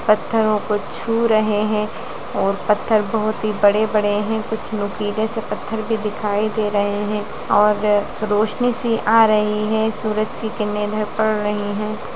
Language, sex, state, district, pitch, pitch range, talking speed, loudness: Hindi, female, Bihar, Lakhisarai, 215 Hz, 210-220 Hz, 170 wpm, -19 LUFS